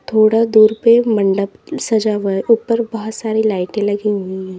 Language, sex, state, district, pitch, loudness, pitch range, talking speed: Hindi, female, Uttar Pradesh, Lalitpur, 215 Hz, -15 LUFS, 200-225 Hz, 180 wpm